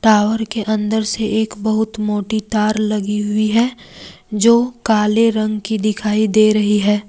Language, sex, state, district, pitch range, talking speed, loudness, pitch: Hindi, female, Jharkhand, Deoghar, 210-220 Hz, 160 wpm, -16 LUFS, 215 Hz